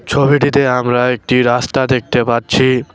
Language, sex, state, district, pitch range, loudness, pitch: Bengali, male, West Bengal, Cooch Behar, 120-130 Hz, -13 LUFS, 125 Hz